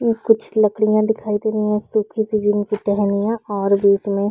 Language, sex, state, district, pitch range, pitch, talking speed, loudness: Hindi, female, Chhattisgarh, Bilaspur, 205-220 Hz, 210 Hz, 210 wpm, -18 LUFS